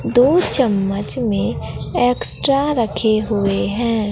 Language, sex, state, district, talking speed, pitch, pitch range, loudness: Hindi, female, Bihar, Katihar, 100 wpm, 230 Hz, 205-250 Hz, -16 LUFS